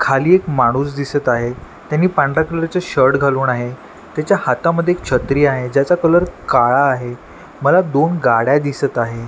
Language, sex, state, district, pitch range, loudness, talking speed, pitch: Marathi, male, Maharashtra, Washim, 125-165 Hz, -16 LUFS, 170 wpm, 140 Hz